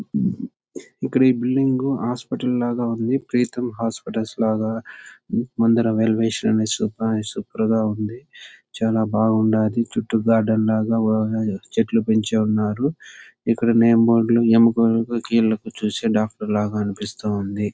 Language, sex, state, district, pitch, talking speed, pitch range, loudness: Telugu, male, Andhra Pradesh, Chittoor, 115 Hz, 100 wpm, 110-115 Hz, -20 LUFS